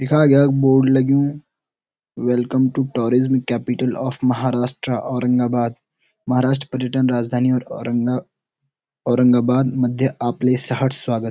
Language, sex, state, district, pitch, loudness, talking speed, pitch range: Garhwali, male, Uttarakhand, Uttarkashi, 125 Hz, -19 LUFS, 105 wpm, 125-135 Hz